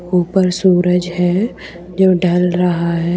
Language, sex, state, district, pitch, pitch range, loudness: Hindi, female, Jharkhand, Deoghar, 180 Hz, 175-180 Hz, -15 LUFS